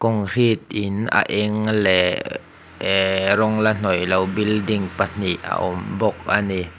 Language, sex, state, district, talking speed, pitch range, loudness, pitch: Mizo, male, Mizoram, Aizawl, 150 wpm, 95-110 Hz, -20 LUFS, 105 Hz